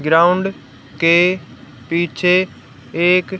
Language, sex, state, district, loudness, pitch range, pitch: Hindi, female, Haryana, Rohtak, -16 LUFS, 165-185 Hz, 175 Hz